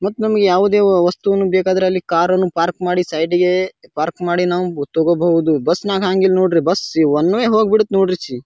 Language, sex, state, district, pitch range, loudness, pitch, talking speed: Kannada, male, Karnataka, Bijapur, 170-190 Hz, -16 LUFS, 180 Hz, 165 wpm